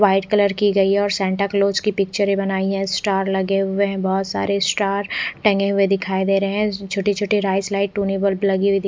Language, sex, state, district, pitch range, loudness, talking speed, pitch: Hindi, female, Odisha, Khordha, 195-200 Hz, -19 LUFS, 210 wpm, 195 Hz